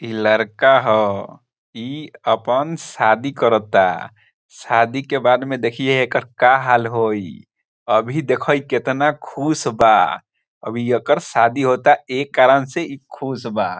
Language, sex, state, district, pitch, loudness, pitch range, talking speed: Bhojpuri, male, Bihar, Saran, 130 Hz, -17 LUFS, 115-140 Hz, 140 wpm